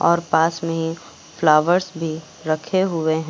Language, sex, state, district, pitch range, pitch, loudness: Hindi, female, Uttar Pradesh, Lucknow, 160-170 Hz, 165 Hz, -20 LUFS